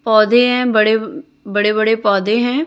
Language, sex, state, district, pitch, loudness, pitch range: Hindi, female, Chhattisgarh, Raipur, 225 Hz, -14 LUFS, 215-245 Hz